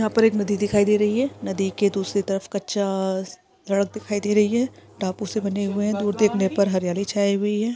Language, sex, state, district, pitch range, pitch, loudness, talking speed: Hindi, female, Chhattisgarh, Korba, 195-210 Hz, 205 Hz, -23 LUFS, 230 wpm